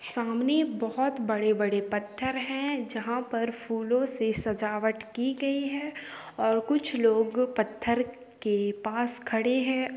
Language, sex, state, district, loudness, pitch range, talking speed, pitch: Hindi, female, Bihar, Gopalganj, -28 LUFS, 220-260 Hz, 125 wpm, 240 Hz